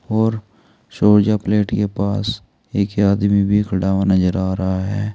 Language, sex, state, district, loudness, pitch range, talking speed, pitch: Hindi, male, Uttar Pradesh, Saharanpur, -18 LUFS, 95-105 Hz, 175 wpm, 100 Hz